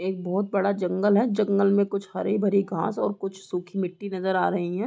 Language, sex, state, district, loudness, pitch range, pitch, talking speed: Hindi, female, Bihar, Gopalganj, -25 LUFS, 185-200 Hz, 195 Hz, 195 wpm